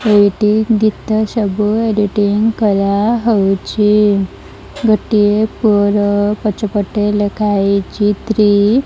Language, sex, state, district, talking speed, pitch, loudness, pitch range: Odia, female, Odisha, Malkangiri, 75 wpm, 210 Hz, -14 LUFS, 205-215 Hz